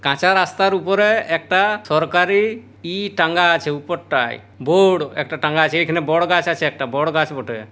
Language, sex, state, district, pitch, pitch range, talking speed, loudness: Bengali, male, West Bengal, Purulia, 170 Hz, 150-185 Hz, 165 wpm, -18 LUFS